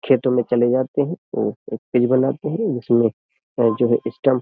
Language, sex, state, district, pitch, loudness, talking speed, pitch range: Hindi, male, Uttar Pradesh, Jyotiba Phule Nagar, 125 Hz, -20 LUFS, 205 wpm, 120-130 Hz